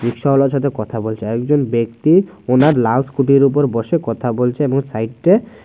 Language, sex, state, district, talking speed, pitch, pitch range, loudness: Bengali, male, Tripura, West Tripura, 160 wpm, 130 Hz, 115-145 Hz, -16 LUFS